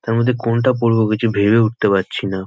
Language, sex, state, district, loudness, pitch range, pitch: Bengali, male, West Bengal, North 24 Parganas, -16 LUFS, 100-115 Hz, 115 Hz